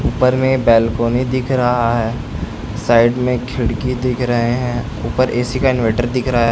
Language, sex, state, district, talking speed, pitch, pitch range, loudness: Hindi, male, Bihar, Saran, 175 wpm, 120 Hz, 115-125 Hz, -16 LUFS